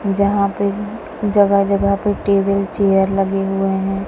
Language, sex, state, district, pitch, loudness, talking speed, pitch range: Hindi, female, Punjab, Kapurthala, 200 Hz, -17 LUFS, 145 wpm, 195-200 Hz